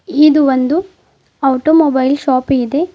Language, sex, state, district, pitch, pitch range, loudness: Kannada, female, Karnataka, Bidar, 285 Hz, 265-315 Hz, -13 LUFS